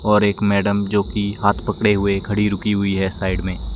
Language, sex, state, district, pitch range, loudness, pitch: Hindi, male, Himachal Pradesh, Shimla, 95-105 Hz, -19 LUFS, 100 Hz